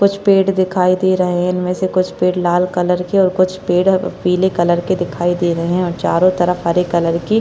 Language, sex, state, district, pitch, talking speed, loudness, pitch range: Hindi, female, Maharashtra, Chandrapur, 180 Hz, 245 wpm, -15 LUFS, 175-185 Hz